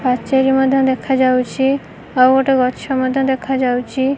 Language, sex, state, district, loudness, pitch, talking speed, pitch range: Odia, female, Odisha, Malkangiri, -16 LUFS, 265 Hz, 145 wpm, 255-270 Hz